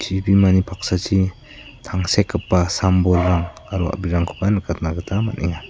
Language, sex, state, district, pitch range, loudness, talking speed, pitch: Garo, male, Meghalaya, South Garo Hills, 90-95 Hz, -19 LUFS, 95 wpm, 95 Hz